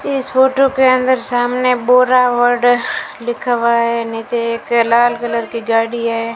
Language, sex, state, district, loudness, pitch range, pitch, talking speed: Hindi, female, Rajasthan, Bikaner, -14 LUFS, 230-250 Hz, 240 Hz, 150 wpm